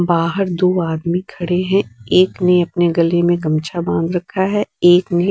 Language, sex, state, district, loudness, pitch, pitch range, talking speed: Hindi, female, Bihar, West Champaran, -16 LUFS, 175 Hz, 170-180 Hz, 180 wpm